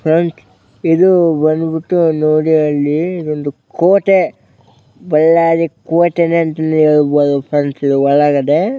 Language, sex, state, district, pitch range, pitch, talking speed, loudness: Kannada, male, Karnataka, Bellary, 145-165 Hz, 155 Hz, 100 wpm, -13 LUFS